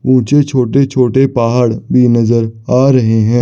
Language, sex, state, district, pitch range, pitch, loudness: Hindi, male, Chandigarh, Chandigarh, 115-130 Hz, 125 Hz, -11 LUFS